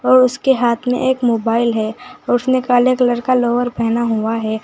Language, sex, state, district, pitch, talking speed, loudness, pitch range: Hindi, female, Uttar Pradesh, Saharanpur, 245 Hz, 205 wpm, -16 LUFS, 230-255 Hz